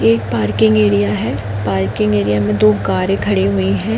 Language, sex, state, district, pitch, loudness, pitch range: Hindi, female, Uttar Pradesh, Jalaun, 105 Hz, -15 LUFS, 100-105 Hz